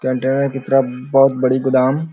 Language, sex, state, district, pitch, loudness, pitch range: Hindi, male, Chhattisgarh, Korba, 130 Hz, -16 LUFS, 130-135 Hz